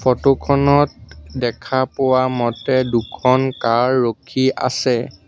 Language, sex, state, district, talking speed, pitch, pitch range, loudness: Assamese, male, Assam, Sonitpur, 100 wpm, 130 Hz, 120-130 Hz, -18 LUFS